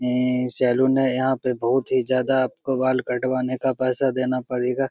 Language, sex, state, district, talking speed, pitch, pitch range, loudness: Maithili, male, Bihar, Begusarai, 195 wpm, 130 Hz, 125-130 Hz, -22 LUFS